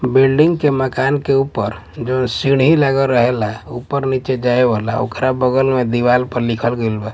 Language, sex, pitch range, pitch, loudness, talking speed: Bhojpuri, male, 120-135 Hz, 125 Hz, -16 LUFS, 170 wpm